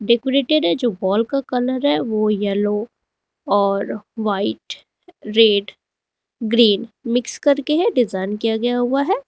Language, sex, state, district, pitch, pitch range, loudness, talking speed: Hindi, female, Uttar Pradesh, Lalitpur, 235 Hz, 210-275 Hz, -19 LUFS, 135 wpm